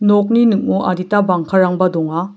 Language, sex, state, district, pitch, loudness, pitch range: Garo, male, Meghalaya, South Garo Hills, 185 Hz, -15 LUFS, 180-205 Hz